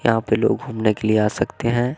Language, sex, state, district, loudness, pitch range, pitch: Hindi, male, Bihar, West Champaran, -20 LUFS, 105-120 Hz, 110 Hz